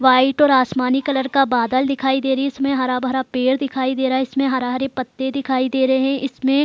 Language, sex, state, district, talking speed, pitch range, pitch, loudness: Hindi, female, Bihar, Gopalganj, 235 wpm, 260-270 Hz, 265 Hz, -19 LUFS